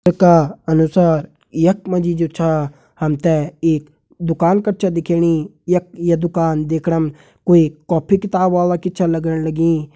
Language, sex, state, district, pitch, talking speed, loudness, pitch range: Hindi, male, Uttarakhand, Uttarkashi, 165 Hz, 160 wpm, -17 LUFS, 160-175 Hz